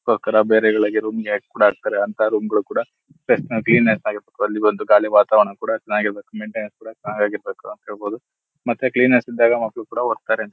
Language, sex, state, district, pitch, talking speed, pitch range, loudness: Kannada, male, Karnataka, Shimoga, 110 Hz, 150 wpm, 105-110 Hz, -19 LUFS